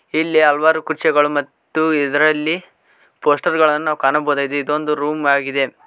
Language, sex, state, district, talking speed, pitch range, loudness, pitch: Kannada, male, Karnataka, Koppal, 110 wpm, 145-155 Hz, -17 LUFS, 150 Hz